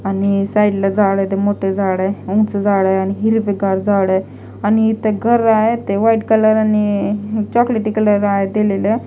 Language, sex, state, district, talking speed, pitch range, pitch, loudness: Marathi, female, Maharashtra, Mumbai Suburban, 170 wpm, 195-215 Hz, 205 Hz, -15 LUFS